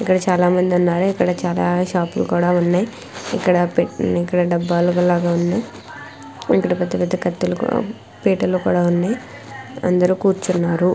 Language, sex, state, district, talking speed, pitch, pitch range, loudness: Telugu, female, Andhra Pradesh, Krishna, 135 wpm, 180 Hz, 175-185 Hz, -18 LUFS